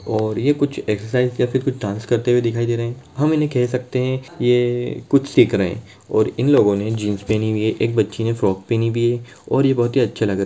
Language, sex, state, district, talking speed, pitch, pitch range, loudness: Hindi, male, Maharashtra, Sindhudurg, 235 wpm, 120 Hz, 110-125 Hz, -19 LUFS